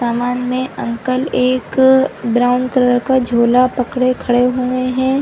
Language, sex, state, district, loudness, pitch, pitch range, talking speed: Hindi, female, Chhattisgarh, Bilaspur, -15 LUFS, 255 Hz, 245-255 Hz, 150 wpm